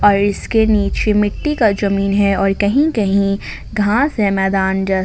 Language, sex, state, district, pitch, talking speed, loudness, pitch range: Hindi, female, Jharkhand, Ranchi, 205 Hz, 155 wpm, -16 LUFS, 195-215 Hz